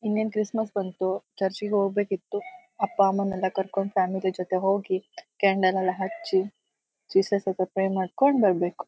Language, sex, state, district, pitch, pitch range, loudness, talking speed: Kannada, female, Karnataka, Shimoga, 195 Hz, 190-210 Hz, -26 LUFS, 150 wpm